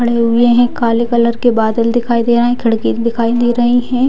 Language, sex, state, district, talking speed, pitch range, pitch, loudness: Hindi, female, Bihar, Muzaffarpur, 250 wpm, 235-240 Hz, 235 Hz, -13 LUFS